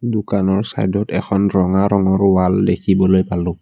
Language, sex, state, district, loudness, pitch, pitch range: Assamese, male, Assam, Kamrup Metropolitan, -16 LUFS, 95 Hz, 95-100 Hz